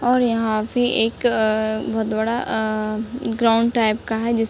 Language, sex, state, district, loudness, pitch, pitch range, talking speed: Hindi, female, Uttar Pradesh, Ghazipur, -20 LUFS, 225 Hz, 220-235 Hz, 185 wpm